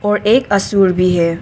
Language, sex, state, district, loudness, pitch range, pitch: Hindi, female, Arunachal Pradesh, Papum Pare, -13 LUFS, 180-210 Hz, 195 Hz